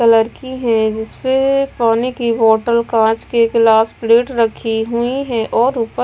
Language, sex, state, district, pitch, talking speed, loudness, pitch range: Hindi, female, Bihar, West Champaran, 230 Hz, 160 wpm, -15 LUFS, 225-245 Hz